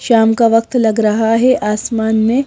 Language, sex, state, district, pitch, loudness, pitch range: Hindi, female, Madhya Pradesh, Bhopal, 225 Hz, -13 LUFS, 220-235 Hz